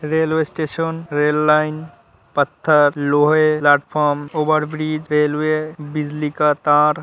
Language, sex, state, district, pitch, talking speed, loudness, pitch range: Hindi, male, Uttar Pradesh, Hamirpur, 150 Hz, 105 wpm, -18 LUFS, 145-155 Hz